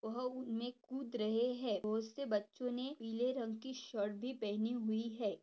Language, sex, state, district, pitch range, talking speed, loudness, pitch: Hindi, female, Maharashtra, Dhule, 220-250 Hz, 185 wpm, -40 LUFS, 235 Hz